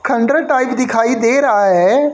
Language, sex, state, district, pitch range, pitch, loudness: Hindi, male, Haryana, Jhajjar, 225-280 Hz, 250 Hz, -13 LUFS